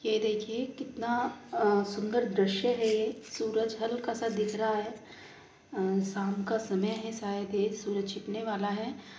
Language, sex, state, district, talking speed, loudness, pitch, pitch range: Hindi, female, Uttar Pradesh, Muzaffarnagar, 155 wpm, -32 LUFS, 220 Hz, 205-225 Hz